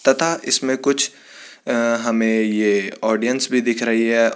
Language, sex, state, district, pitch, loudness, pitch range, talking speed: Hindi, male, Uttarakhand, Tehri Garhwal, 115 Hz, -19 LUFS, 110-130 Hz, 150 wpm